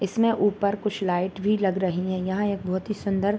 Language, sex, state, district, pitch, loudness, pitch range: Hindi, male, Bihar, Bhagalpur, 200 Hz, -25 LUFS, 185-205 Hz